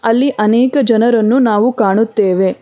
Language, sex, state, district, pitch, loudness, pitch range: Kannada, female, Karnataka, Bangalore, 225 Hz, -12 LUFS, 210-245 Hz